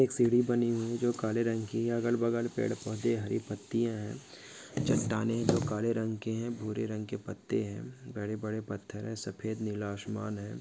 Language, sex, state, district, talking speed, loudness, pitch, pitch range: Hindi, male, Maharashtra, Pune, 200 wpm, -33 LUFS, 110 Hz, 105-120 Hz